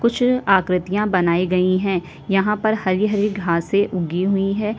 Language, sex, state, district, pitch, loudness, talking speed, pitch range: Hindi, female, Uttar Pradesh, Jyotiba Phule Nagar, 195 Hz, -19 LUFS, 150 wpm, 180-210 Hz